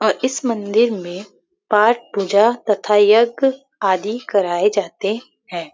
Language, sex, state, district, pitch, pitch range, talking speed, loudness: Hindi, female, Uttar Pradesh, Varanasi, 215 Hz, 200-235 Hz, 125 wpm, -17 LUFS